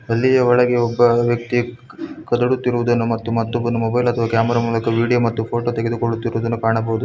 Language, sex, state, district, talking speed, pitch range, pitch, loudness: Kannada, male, Karnataka, Bangalore, 135 wpm, 115-120 Hz, 120 Hz, -18 LUFS